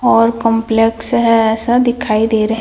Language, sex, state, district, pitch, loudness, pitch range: Hindi, female, Chhattisgarh, Raipur, 225 Hz, -13 LUFS, 225-235 Hz